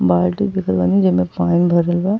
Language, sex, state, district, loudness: Bhojpuri, female, Uttar Pradesh, Ghazipur, -16 LUFS